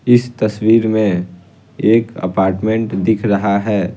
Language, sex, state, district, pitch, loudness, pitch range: Hindi, male, Bihar, Patna, 110 Hz, -15 LUFS, 100-115 Hz